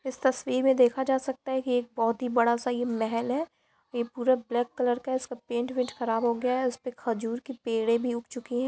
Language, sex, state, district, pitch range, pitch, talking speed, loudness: Hindi, female, Bihar, Jamui, 235-260 Hz, 245 Hz, 250 wpm, -28 LUFS